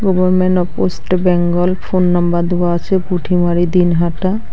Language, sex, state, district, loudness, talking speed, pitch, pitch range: Bengali, female, West Bengal, Alipurduar, -15 LUFS, 130 wpm, 180 Hz, 175-185 Hz